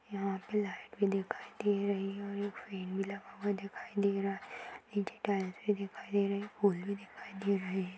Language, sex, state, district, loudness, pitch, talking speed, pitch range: Hindi, female, Chhattisgarh, Balrampur, -36 LUFS, 200 Hz, 60 wpm, 195-205 Hz